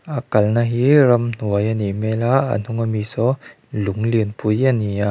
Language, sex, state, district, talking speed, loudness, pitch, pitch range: Mizo, male, Mizoram, Aizawl, 210 wpm, -19 LUFS, 115 Hz, 105-120 Hz